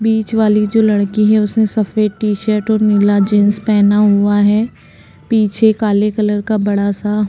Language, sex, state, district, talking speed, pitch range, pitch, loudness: Hindi, female, Uttarakhand, Tehri Garhwal, 175 wpm, 205-215 Hz, 210 Hz, -13 LUFS